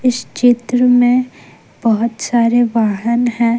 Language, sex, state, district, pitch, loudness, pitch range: Hindi, female, Jharkhand, Ranchi, 240 Hz, -14 LUFS, 235-245 Hz